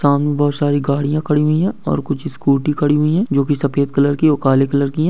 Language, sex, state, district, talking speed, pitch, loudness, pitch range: Hindi, male, Maharashtra, Aurangabad, 260 wpm, 145 Hz, -16 LUFS, 140-150 Hz